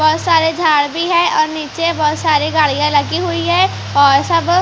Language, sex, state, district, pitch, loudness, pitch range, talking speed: Hindi, female, Bihar, Patna, 320 Hz, -14 LUFS, 300-340 Hz, 195 wpm